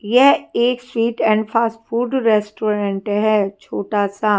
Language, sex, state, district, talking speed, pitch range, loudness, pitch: Hindi, female, Punjab, Fazilka, 125 wpm, 205-235 Hz, -18 LUFS, 215 Hz